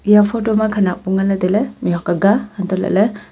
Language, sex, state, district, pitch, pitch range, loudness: Wancho, female, Arunachal Pradesh, Longding, 200 Hz, 190-215 Hz, -16 LUFS